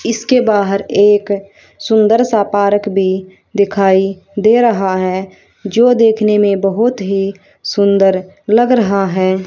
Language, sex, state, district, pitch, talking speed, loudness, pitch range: Hindi, female, Haryana, Rohtak, 200 Hz, 125 wpm, -13 LUFS, 195-220 Hz